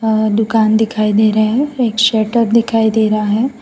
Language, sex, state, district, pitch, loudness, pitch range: Hindi, female, Gujarat, Valsad, 220 Hz, -13 LUFS, 215-230 Hz